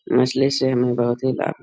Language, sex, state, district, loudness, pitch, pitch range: Hindi, male, Bihar, Araria, -20 LUFS, 125 Hz, 125-130 Hz